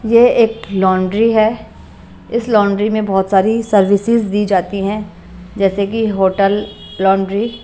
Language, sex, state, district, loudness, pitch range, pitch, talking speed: Hindi, female, Punjab, Pathankot, -14 LUFS, 195-225 Hz, 205 Hz, 135 wpm